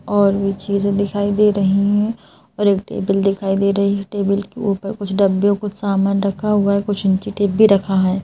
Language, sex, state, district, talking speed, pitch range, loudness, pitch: Hindi, male, Madhya Pradesh, Bhopal, 220 wpm, 195-205 Hz, -17 LUFS, 200 Hz